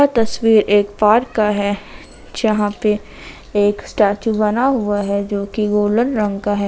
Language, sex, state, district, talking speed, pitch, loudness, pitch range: Hindi, female, Jharkhand, Ranchi, 170 wpm, 210 Hz, -17 LUFS, 205-220 Hz